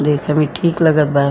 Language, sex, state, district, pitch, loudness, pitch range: Bhojpuri, female, Uttar Pradesh, Gorakhpur, 150 Hz, -15 LUFS, 145-160 Hz